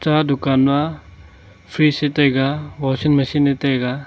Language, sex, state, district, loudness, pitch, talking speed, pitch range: Wancho, male, Arunachal Pradesh, Longding, -18 LUFS, 140 Hz, 145 wpm, 130-150 Hz